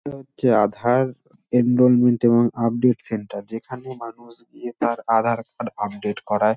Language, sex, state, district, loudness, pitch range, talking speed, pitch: Bengali, male, West Bengal, Dakshin Dinajpur, -21 LUFS, 110-125 Hz, 165 wpm, 120 Hz